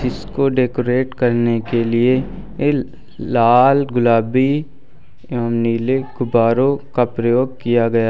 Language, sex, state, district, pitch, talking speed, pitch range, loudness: Hindi, male, Uttar Pradesh, Lucknow, 125 Hz, 110 wpm, 115-135 Hz, -17 LUFS